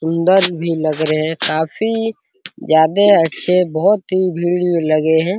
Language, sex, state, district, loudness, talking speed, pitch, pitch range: Hindi, male, Bihar, Araria, -15 LUFS, 155 wpm, 175 Hz, 160-190 Hz